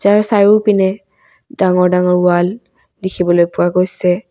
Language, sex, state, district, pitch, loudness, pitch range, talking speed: Assamese, female, Assam, Kamrup Metropolitan, 185 Hz, -13 LUFS, 180-205 Hz, 110 wpm